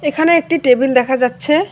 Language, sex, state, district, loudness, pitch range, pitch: Bengali, female, West Bengal, Alipurduar, -14 LUFS, 255-325 Hz, 295 Hz